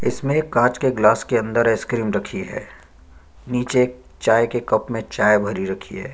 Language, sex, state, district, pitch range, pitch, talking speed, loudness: Hindi, male, Chhattisgarh, Sukma, 105-125 Hz, 115 Hz, 195 wpm, -20 LUFS